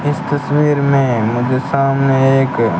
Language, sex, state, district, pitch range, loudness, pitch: Hindi, male, Rajasthan, Bikaner, 130-145 Hz, -14 LUFS, 135 Hz